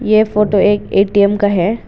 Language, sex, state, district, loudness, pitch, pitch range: Hindi, female, Arunachal Pradesh, Lower Dibang Valley, -13 LUFS, 205 Hz, 200-215 Hz